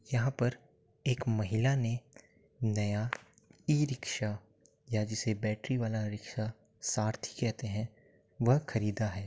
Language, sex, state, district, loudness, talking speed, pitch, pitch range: Hindi, male, Uttar Pradesh, Jyotiba Phule Nagar, -34 LUFS, 115 wpm, 110 Hz, 110-125 Hz